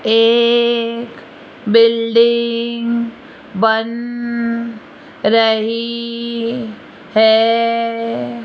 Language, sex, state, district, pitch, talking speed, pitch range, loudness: Hindi, female, Rajasthan, Jaipur, 230 Hz, 35 wpm, 225-235 Hz, -15 LUFS